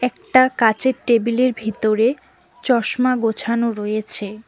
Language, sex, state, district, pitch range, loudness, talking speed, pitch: Bengali, female, West Bengal, Cooch Behar, 220-250 Hz, -18 LUFS, 95 wpm, 235 Hz